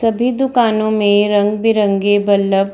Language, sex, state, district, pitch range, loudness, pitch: Hindi, female, Bihar, Samastipur, 205-225 Hz, -14 LUFS, 210 Hz